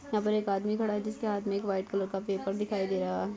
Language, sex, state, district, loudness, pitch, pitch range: Hindi, female, Chhattisgarh, Bastar, -32 LUFS, 200 Hz, 195-210 Hz